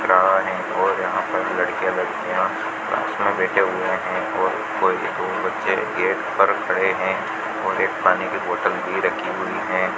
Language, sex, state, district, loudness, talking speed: Hindi, male, Rajasthan, Bikaner, -21 LUFS, 180 wpm